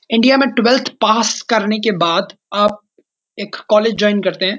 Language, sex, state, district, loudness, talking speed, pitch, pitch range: Hindi, male, Uttarakhand, Uttarkashi, -15 LUFS, 170 wpm, 215 Hz, 205-230 Hz